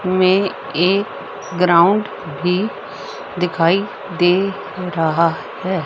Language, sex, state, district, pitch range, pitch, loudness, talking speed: Hindi, female, Haryana, Rohtak, 170-190 Hz, 185 Hz, -18 LUFS, 80 wpm